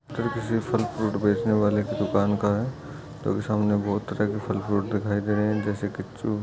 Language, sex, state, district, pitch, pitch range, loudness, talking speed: Hindi, male, Uttar Pradesh, Etah, 105 Hz, 100-110 Hz, -26 LUFS, 235 wpm